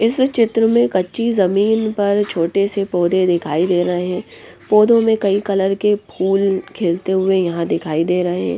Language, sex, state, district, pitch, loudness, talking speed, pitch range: Hindi, female, Bihar, West Champaran, 195 Hz, -17 LUFS, 180 wpm, 180-210 Hz